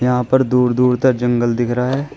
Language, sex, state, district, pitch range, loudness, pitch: Hindi, male, Uttar Pradesh, Shamli, 120-130 Hz, -16 LUFS, 125 Hz